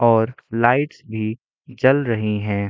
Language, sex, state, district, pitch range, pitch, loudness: Hindi, male, Bihar, Gopalganj, 110-130 Hz, 115 Hz, -20 LUFS